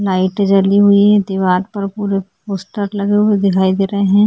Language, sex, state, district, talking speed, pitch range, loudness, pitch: Hindi, female, Chhattisgarh, Korba, 195 wpm, 190-205 Hz, -14 LUFS, 200 Hz